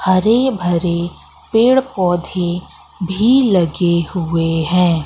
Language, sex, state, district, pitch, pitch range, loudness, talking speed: Hindi, female, Madhya Pradesh, Katni, 180 Hz, 170-215 Hz, -15 LUFS, 95 wpm